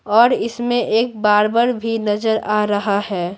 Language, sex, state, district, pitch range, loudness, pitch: Hindi, female, Bihar, Patna, 210-235 Hz, -17 LUFS, 220 Hz